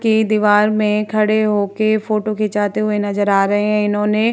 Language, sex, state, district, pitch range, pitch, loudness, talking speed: Hindi, female, Bihar, Vaishali, 205-215 Hz, 210 Hz, -16 LUFS, 195 wpm